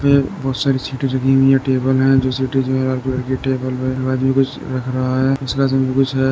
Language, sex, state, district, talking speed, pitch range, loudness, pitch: Hindi, male, Uttar Pradesh, Jyotiba Phule Nagar, 170 wpm, 130-135 Hz, -17 LUFS, 130 Hz